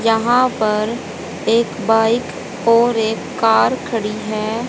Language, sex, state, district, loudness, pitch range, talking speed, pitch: Hindi, female, Haryana, Rohtak, -17 LUFS, 220-235 Hz, 115 wpm, 225 Hz